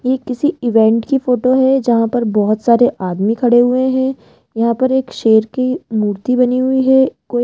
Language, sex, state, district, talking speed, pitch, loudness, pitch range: Hindi, female, Rajasthan, Jaipur, 200 wpm, 245 Hz, -14 LUFS, 225-260 Hz